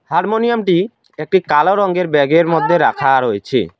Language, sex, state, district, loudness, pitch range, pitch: Bengali, male, West Bengal, Alipurduar, -14 LUFS, 150-190 Hz, 175 Hz